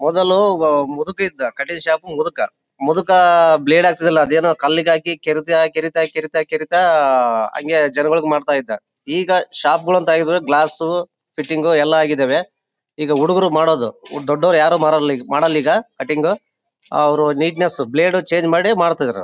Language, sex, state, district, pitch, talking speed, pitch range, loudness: Kannada, male, Karnataka, Bellary, 160 Hz, 130 wpm, 150-170 Hz, -16 LUFS